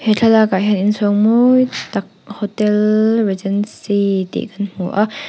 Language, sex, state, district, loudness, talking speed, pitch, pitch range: Mizo, female, Mizoram, Aizawl, -16 LUFS, 145 wpm, 210 Hz, 200-220 Hz